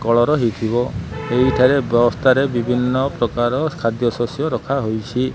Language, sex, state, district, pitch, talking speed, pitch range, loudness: Odia, male, Odisha, Malkangiri, 120 Hz, 110 wpm, 120-135 Hz, -18 LUFS